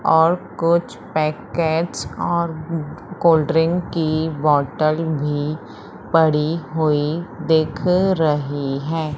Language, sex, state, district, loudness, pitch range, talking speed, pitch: Hindi, female, Madhya Pradesh, Umaria, -20 LUFS, 150-165 Hz, 90 wpm, 160 Hz